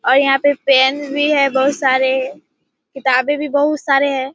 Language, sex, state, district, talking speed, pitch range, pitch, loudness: Hindi, female, Bihar, Kishanganj, 165 wpm, 265-290 Hz, 275 Hz, -15 LUFS